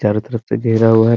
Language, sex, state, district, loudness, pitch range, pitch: Hindi, male, Bihar, Muzaffarpur, -15 LUFS, 110-115 Hz, 115 Hz